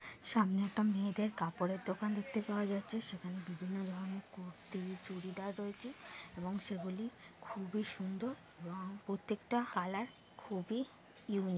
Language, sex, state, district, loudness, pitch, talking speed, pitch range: Bengali, female, West Bengal, Kolkata, -40 LUFS, 195 Hz, 120 wpm, 185-215 Hz